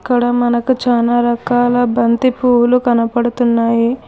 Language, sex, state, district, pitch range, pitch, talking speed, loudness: Telugu, female, Telangana, Hyderabad, 235-245 Hz, 240 Hz, 105 wpm, -14 LUFS